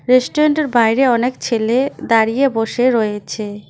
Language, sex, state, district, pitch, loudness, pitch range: Bengali, female, West Bengal, Cooch Behar, 240 Hz, -16 LUFS, 225-260 Hz